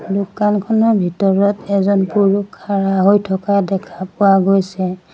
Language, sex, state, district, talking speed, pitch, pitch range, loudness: Assamese, female, Assam, Sonitpur, 115 wpm, 195 Hz, 190-200 Hz, -15 LUFS